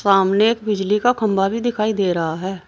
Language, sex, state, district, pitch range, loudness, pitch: Hindi, female, Uttar Pradesh, Saharanpur, 190-220 Hz, -18 LUFS, 200 Hz